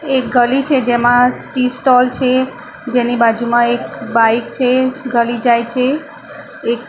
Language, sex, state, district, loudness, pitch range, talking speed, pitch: Gujarati, female, Maharashtra, Mumbai Suburban, -14 LUFS, 240-260 Hz, 150 wpm, 250 Hz